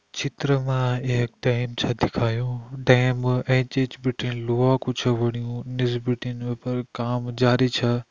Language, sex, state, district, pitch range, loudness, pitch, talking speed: Hindi, male, Uttarakhand, Tehri Garhwal, 120-125 Hz, -24 LUFS, 125 Hz, 155 wpm